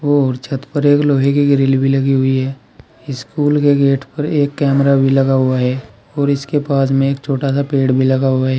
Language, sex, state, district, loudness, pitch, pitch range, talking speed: Hindi, male, Uttar Pradesh, Saharanpur, -15 LUFS, 135 Hz, 135-140 Hz, 230 wpm